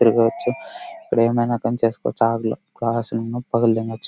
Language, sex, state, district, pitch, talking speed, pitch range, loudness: Telugu, male, Karnataka, Bellary, 115 Hz, 75 wpm, 115-120 Hz, -21 LUFS